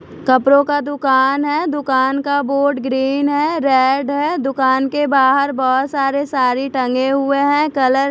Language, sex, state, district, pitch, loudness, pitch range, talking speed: Hindi, female, Chhattisgarh, Raipur, 275 Hz, -16 LUFS, 265-285 Hz, 165 wpm